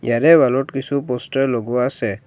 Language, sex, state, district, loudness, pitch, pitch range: Assamese, male, Assam, Kamrup Metropolitan, -18 LUFS, 130 Hz, 120-135 Hz